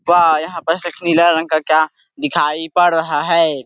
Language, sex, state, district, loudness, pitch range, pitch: Hindi, male, Chhattisgarh, Sarguja, -15 LUFS, 155-170 Hz, 160 Hz